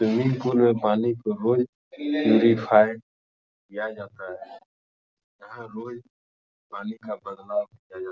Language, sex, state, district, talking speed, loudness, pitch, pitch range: Hindi, male, Uttar Pradesh, Etah, 135 wpm, -23 LUFS, 110 Hz, 95-120 Hz